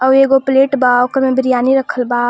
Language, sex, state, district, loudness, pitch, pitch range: Bhojpuri, female, Jharkhand, Palamu, -13 LUFS, 260 Hz, 250-270 Hz